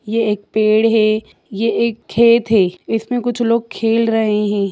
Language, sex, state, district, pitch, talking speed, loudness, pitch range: Hindi, female, Bihar, Jahanabad, 225 Hz, 180 wpm, -16 LUFS, 210-230 Hz